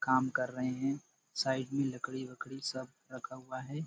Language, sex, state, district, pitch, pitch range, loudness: Hindi, male, Chhattisgarh, Bastar, 130 Hz, 130-135 Hz, -37 LUFS